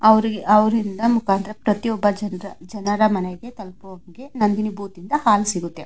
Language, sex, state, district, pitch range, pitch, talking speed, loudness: Kannada, female, Karnataka, Mysore, 195-220 Hz, 210 Hz, 135 wpm, -20 LUFS